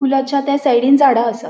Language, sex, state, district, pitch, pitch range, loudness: Konkani, female, Goa, North and South Goa, 270 Hz, 245-280 Hz, -14 LUFS